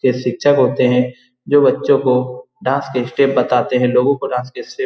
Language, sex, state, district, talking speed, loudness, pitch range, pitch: Hindi, male, Bihar, Saran, 220 wpm, -16 LUFS, 125-140 Hz, 125 Hz